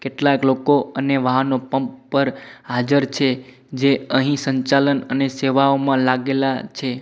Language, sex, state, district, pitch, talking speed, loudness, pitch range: Gujarati, male, Gujarat, Gandhinagar, 135 Hz, 130 wpm, -19 LUFS, 130-140 Hz